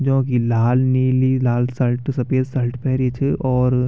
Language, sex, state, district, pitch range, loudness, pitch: Garhwali, male, Uttarakhand, Tehri Garhwal, 125-130 Hz, -19 LUFS, 130 Hz